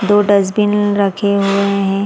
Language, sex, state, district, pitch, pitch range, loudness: Hindi, female, Chhattisgarh, Sarguja, 200 Hz, 195-205 Hz, -14 LUFS